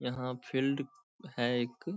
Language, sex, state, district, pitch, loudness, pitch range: Hindi, male, Bihar, Saharsa, 130 Hz, -34 LUFS, 125-170 Hz